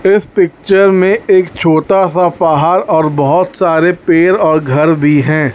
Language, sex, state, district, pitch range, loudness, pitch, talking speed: Hindi, male, Chhattisgarh, Raipur, 155-190 Hz, -10 LUFS, 175 Hz, 160 wpm